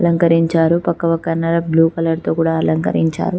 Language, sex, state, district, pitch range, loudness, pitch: Telugu, female, Telangana, Karimnagar, 165-170 Hz, -16 LUFS, 165 Hz